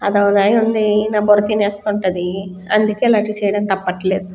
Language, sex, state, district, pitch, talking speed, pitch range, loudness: Telugu, female, Andhra Pradesh, Guntur, 205 Hz, 110 wpm, 195-210 Hz, -16 LUFS